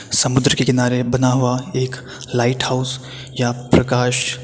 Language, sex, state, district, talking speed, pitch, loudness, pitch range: Hindi, male, Uttar Pradesh, Etah, 150 wpm, 125 Hz, -18 LUFS, 125-130 Hz